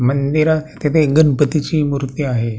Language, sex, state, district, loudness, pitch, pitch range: Marathi, male, Maharashtra, Pune, -16 LUFS, 145 Hz, 135-155 Hz